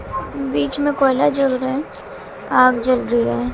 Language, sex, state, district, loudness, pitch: Hindi, female, Bihar, West Champaran, -18 LUFS, 250 Hz